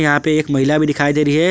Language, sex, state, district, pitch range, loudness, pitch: Hindi, male, Jharkhand, Garhwa, 145-155 Hz, -15 LUFS, 150 Hz